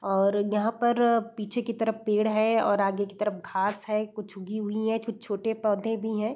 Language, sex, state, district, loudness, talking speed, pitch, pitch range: Hindi, female, Bihar, East Champaran, -27 LUFS, 215 wpm, 215 Hz, 205-225 Hz